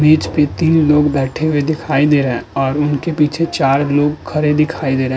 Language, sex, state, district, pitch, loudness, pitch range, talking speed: Hindi, male, Uttar Pradesh, Budaun, 150 Hz, -15 LUFS, 135-155 Hz, 220 wpm